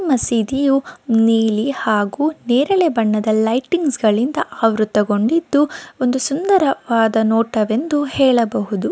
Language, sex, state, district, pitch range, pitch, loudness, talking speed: Kannada, female, Karnataka, Dakshina Kannada, 220-290 Hz, 245 Hz, -17 LUFS, 80 wpm